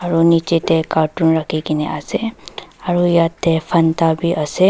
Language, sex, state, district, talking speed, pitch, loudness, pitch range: Nagamese, female, Nagaland, Dimapur, 165 wpm, 165 Hz, -17 LUFS, 160-170 Hz